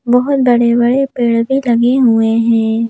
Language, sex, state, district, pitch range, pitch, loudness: Hindi, female, Madhya Pradesh, Bhopal, 230-255 Hz, 240 Hz, -12 LUFS